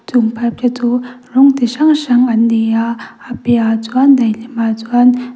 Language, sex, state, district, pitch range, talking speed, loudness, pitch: Mizo, female, Mizoram, Aizawl, 230-250 Hz, 200 wpm, -13 LUFS, 240 Hz